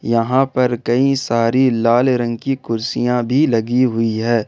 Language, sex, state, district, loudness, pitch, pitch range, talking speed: Hindi, male, Jharkhand, Ranchi, -16 LUFS, 120 Hz, 115-130 Hz, 160 wpm